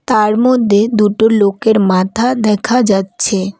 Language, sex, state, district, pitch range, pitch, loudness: Bengali, female, West Bengal, Alipurduar, 200-225 Hz, 210 Hz, -12 LUFS